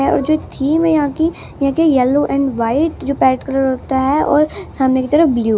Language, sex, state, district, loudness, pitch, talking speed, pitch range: Hindi, female, Bihar, West Champaran, -15 LUFS, 275 Hz, 245 wpm, 265-305 Hz